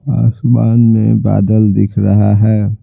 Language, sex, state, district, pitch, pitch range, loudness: Hindi, male, Bihar, Patna, 110 Hz, 105-115 Hz, -11 LUFS